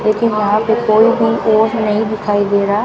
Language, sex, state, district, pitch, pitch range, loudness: Hindi, female, Rajasthan, Bikaner, 215 Hz, 210-225 Hz, -14 LUFS